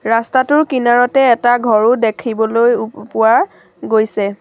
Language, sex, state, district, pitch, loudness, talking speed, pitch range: Assamese, female, Assam, Sonitpur, 230 Hz, -13 LUFS, 120 wpm, 220-250 Hz